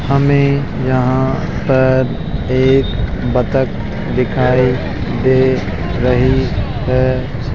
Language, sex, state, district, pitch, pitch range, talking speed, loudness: Hindi, male, Rajasthan, Jaipur, 130 Hz, 125-130 Hz, 70 wpm, -15 LUFS